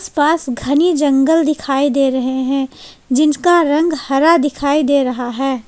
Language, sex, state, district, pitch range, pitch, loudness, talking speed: Hindi, female, Jharkhand, Palamu, 270-310 Hz, 280 Hz, -15 LUFS, 160 wpm